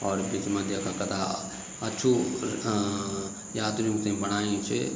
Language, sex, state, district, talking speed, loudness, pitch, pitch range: Garhwali, male, Uttarakhand, Tehri Garhwal, 135 wpm, -29 LUFS, 100 Hz, 100-105 Hz